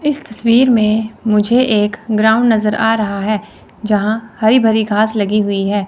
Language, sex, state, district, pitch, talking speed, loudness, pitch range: Hindi, female, Chandigarh, Chandigarh, 220 Hz, 175 wpm, -14 LUFS, 210-225 Hz